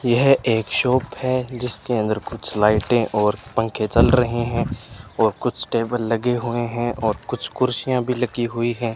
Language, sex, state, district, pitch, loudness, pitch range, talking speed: Hindi, male, Rajasthan, Bikaner, 120 Hz, -21 LUFS, 115-125 Hz, 175 wpm